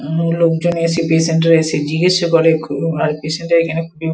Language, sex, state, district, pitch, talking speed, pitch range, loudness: Bengali, female, West Bengal, Kolkata, 165 Hz, 220 wpm, 160-165 Hz, -15 LUFS